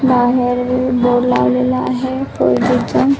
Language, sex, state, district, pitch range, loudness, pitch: Marathi, female, Maharashtra, Nagpur, 245-255 Hz, -15 LUFS, 245 Hz